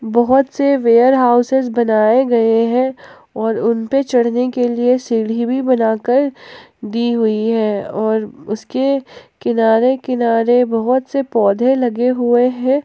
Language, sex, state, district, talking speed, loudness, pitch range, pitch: Hindi, female, Jharkhand, Ranchi, 135 wpm, -15 LUFS, 225-260 Hz, 240 Hz